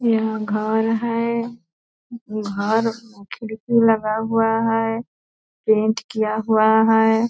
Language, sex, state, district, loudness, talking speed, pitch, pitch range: Hindi, female, Bihar, Purnia, -20 LUFS, 105 wpm, 225 Hz, 215-230 Hz